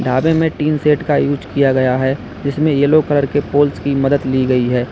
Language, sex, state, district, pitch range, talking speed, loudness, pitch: Hindi, male, Uttar Pradesh, Lalitpur, 130-150 Hz, 230 wpm, -15 LUFS, 140 Hz